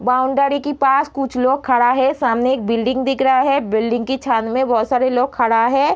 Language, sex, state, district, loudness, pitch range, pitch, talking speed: Hindi, female, Bihar, Araria, -17 LUFS, 240-270 Hz, 260 Hz, 220 wpm